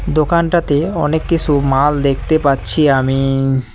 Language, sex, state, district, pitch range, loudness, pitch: Bengali, male, West Bengal, Cooch Behar, 135-160 Hz, -14 LUFS, 145 Hz